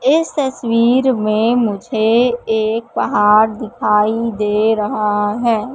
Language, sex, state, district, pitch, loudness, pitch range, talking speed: Hindi, female, Madhya Pradesh, Katni, 225 Hz, -15 LUFS, 215-240 Hz, 105 wpm